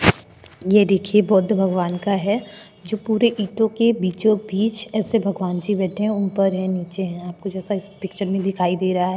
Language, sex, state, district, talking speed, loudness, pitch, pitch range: Hindi, female, Goa, North and South Goa, 190 wpm, -21 LUFS, 200 Hz, 185-210 Hz